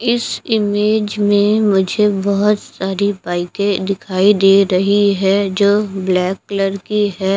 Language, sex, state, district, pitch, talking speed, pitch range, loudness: Hindi, female, Bihar, Katihar, 200 Hz, 130 wpm, 195-205 Hz, -15 LUFS